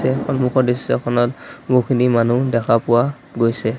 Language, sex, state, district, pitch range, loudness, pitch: Assamese, male, Assam, Sonitpur, 115-130 Hz, -18 LUFS, 120 Hz